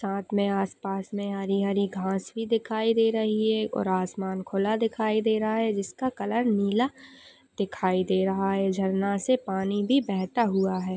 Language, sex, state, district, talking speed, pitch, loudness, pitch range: Hindi, female, Chhattisgarh, Raigarh, 185 wpm, 200 Hz, -27 LUFS, 195-225 Hz